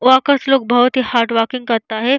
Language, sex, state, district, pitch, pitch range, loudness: Hindi, female, Bihar, Vaishali, 250 Hz, 230-260 Hz, -15 LUFS